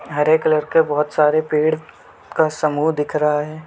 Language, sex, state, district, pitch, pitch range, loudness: Hindi, male, Jharkhand, Sahebganj, 155 Hz, 150-155 Hz, -18 LUFS